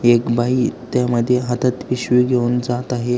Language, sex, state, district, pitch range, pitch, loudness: Marathi, male, Maharashtra, Aurangabad, 120-125 Hz, 125 Hz, -18 LUFS